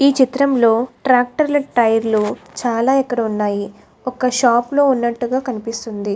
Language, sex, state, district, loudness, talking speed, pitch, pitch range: Telugu, female, Andhra Pradesh, Krishna, -17 LUFS, 145 wpm, 245 Hz, 225-265 Hz